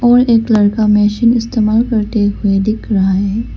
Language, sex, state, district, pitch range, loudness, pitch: Hindi, female, Arunachal Pradesh, Lower Dibang Valley, 205-230 Hz, -13 LUFS, 215 Hz